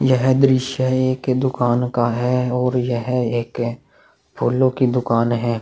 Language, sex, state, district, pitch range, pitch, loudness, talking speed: Hindi, male, Chhattisgarh, Korba, 120-130 Hz, 125 Hz, -19 LUFS, 140 wpm